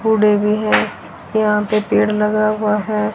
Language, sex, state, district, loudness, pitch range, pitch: Hindi, female, Haryana, Rohtak, -16 LUFS, 210-215 Hz, 210 Hz